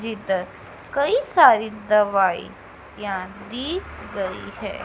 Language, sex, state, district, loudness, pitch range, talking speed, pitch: Hindi, female, Madhya Pradesh, Dhar, -21 LUFS, 195-280 Hz, 100 wpm, 210 Hz